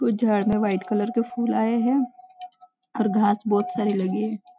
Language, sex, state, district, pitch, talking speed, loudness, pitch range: Hindi, female, Maharashtra, Nagpur, 220 Hz, 195 wpm, -23 LUFS, 205-245 Hz